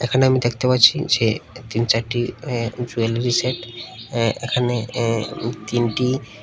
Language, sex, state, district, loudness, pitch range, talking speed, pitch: Bengali, male, Tripura, West Tripura, -20 LUFS, 115-125 Hz, 130 wpm, 120 Hz